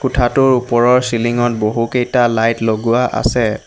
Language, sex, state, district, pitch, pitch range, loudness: Assamese, male, Assam, Hailakandi, 120 Hz, 115-125 Hz, -15 LUFS